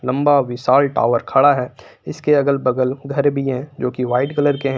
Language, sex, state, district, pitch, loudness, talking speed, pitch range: Hindi, male, Jharkhand, Palamu, 135 Hz, -17 LUFS, 190 wpm, 125-140 Hz